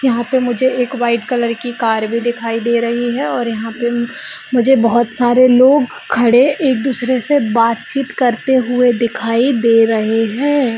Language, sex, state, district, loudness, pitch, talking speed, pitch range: Hindi, female, Jharkhand, Sahebganj, -14 LUFS, 240 Hz, 170 wpm, 230-255 Hz